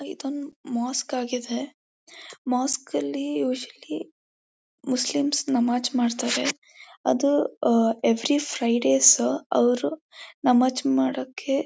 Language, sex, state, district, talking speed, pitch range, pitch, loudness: Kannada, female, Karnataka, Mysore, 85 wpm, 235-285 Hz, 250 Hz, -24 LUFS